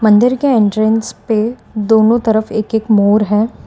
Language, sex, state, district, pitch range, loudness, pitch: Hindi, female, Gujarat, Valsad, 215-225 Hz, -13 LUFS, 220 Hz